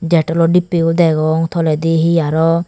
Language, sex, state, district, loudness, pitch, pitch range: Chakma, female, Tripura, Dhalai, -14 LUFS, 165 Hz, 160-170 Hz